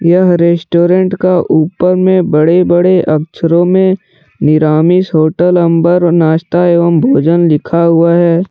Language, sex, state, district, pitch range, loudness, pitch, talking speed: Hindi, male, Jharkhand, Deoghar, 165-180 Hz, -10 LUFS, 170 Hz, 125 wpm